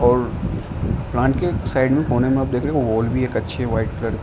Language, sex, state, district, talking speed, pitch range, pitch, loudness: Hindi, male, Uttar Pradesh, Ghazipur, 270 wpm, 110-130 Hz, 120 Hz, -20 LUFS